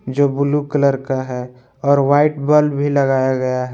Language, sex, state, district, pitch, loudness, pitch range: Hindi, male, Jharkhand, Palamu, 140 Hz, -16 LUFS, 130-145 Hz